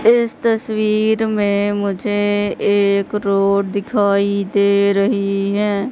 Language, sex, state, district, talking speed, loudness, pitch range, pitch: Hindi, female, Madhya Pradesh, Katni, 100 wpm, -16 LUFS, 200-215 Hz, 205 Hz